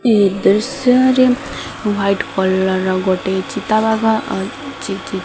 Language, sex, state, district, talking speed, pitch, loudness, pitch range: Odia, female, Odisha, Sambalpur, 90 wpm, 210 Hz, -16 LUFS, 190-230 Hz